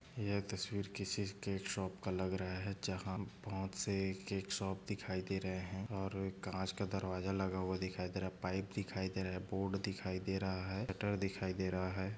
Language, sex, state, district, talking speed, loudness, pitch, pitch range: Hindi, male, Maharashtra, Nagpur, 210 wpm, -41 LUFS, 95 Hz, 95-100 Hz